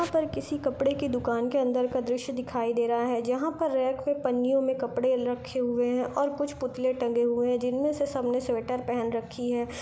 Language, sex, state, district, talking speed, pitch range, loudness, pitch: Hindi, female, Bihar, Jahanabad, 225 wpm, 245-270 Hz, -28 LUFS, 250 Hz